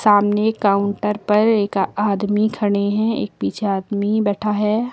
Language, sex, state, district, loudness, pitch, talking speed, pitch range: Hindi, female, Uttar Pradesh, Lucknow, -19 LUFS, 210 Hz, 145 wpm, 200-215 Hz